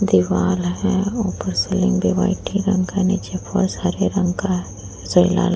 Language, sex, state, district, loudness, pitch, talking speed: Hindi, female, Uttar Pradesh, Muzaffarnagar, -19 LUFS, 180 Hz, 175 wpm